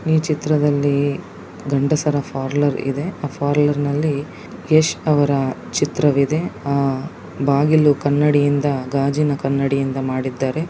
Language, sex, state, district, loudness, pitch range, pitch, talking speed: Kannada, male, Karnataka, Dakshina Kannada, -19 LUFS, 140-150 Hz, 145 Hz, 100 wpm